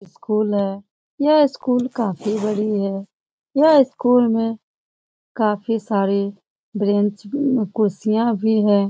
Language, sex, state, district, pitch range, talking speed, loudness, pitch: Hindi, female, Bihar, Lakhisarai, 205-245 Hz, 115 wpm, -19 LUFS, 215 Hz